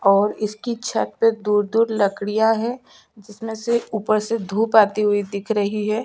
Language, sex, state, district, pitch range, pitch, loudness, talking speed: Hindi, female, Chhattisgarh, Sukma, 205-225 Hz, 215 Hz, -20 LUFS, 170 wpm